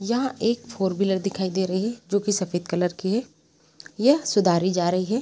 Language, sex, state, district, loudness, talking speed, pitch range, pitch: Hindi, female, Chhattisgarh, Rajnandgaon, -24 LUFS, 220 wpm, 180-230 Hz, 190 Hz